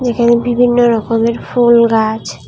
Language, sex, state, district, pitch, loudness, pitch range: Bengali, female, Tripura, West Tripura, 235 Hz, -12 LUFS, 230-240 Hz